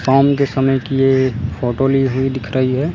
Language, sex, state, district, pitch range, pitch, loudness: Hindi, male, Chandigarh, Chandigarh, 130-135 Hz, 135 Hz, -16 LUFS